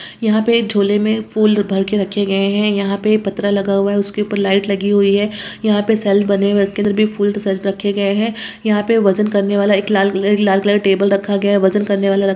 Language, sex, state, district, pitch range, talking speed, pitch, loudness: Hindi, female, Bihar, Saharsa, 200-210 Hz, 270 wpm, 200 Hz, -15 LUFS